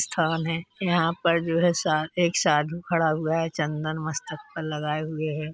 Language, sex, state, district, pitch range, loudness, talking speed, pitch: Hindi, male, Uttar Pradesh, Hamirpur, 155-170 Hz, -25 LUFS, 195 wpm, 165 Hz